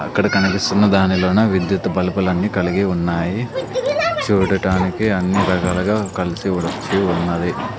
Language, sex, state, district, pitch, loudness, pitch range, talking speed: Telugu, male, Andhra Pradesh, Sri Satya Sai, 95 Hz, -18 LUFS, 90-100 Hz, 100 wpm